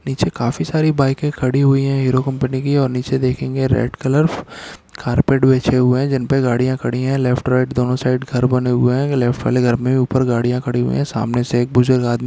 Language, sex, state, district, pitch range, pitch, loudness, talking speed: Hindi, male, Uttar Pradesh, Hamirpur, 125-135 Hz, 130 Hz, -17 LUFS, 230 wpm